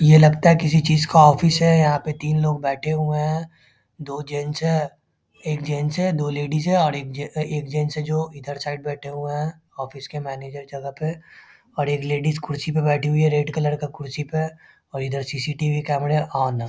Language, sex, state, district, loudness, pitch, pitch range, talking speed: Hindi, male, Bihar, Lakhisarai, -21 LUFS, 150 Hz, 145-155 Hz, 210 wpm